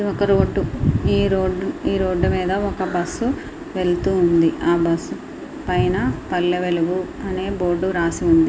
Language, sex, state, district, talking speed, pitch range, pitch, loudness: Telugu, female, Andhra Pradesh, Srikakulam, 105 wpm, 175-195 Hz, 185 Hz, -20 LUFS